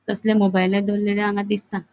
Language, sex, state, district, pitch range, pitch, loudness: Konkani, female, Goa, North and South Goa, 200-210 Hz, 205 Hz, -21 LUFS